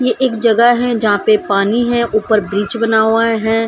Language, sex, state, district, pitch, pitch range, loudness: Hindi, female, Bihar, Samastipur, 225 Hz, 215-235 Hz, -13 LUFS